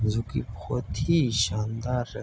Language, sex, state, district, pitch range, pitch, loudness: Hindi, male, Bihar, Bhagalpur, 110-125 Hz, 115 Hz, -27 LUFS